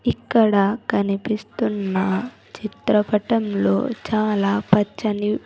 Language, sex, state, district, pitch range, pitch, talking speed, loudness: Telugu, female, Andhra Pradesh, Sri Satya Sai, 200-215 Hz, 210 Hz, 55 wpm, -21 LUFS